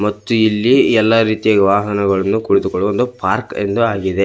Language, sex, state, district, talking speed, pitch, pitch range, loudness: Kannada, male, Karnataka, Belgaum, 125 wpm, 105 Hz, 100-110 Hz, -15 LUFS